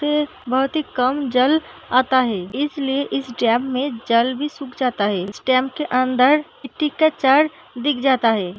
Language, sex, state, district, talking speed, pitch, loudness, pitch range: Hindi, female, Uttar Pradesh, Deoria, 160 wpm, 260 Hz, -19 LUFS, 250-290 Hz